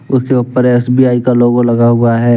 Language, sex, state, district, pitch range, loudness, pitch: Hindi, male, Jharkhand, Deoghar, 120-125 Hz, -11 LUFS, 120 Hz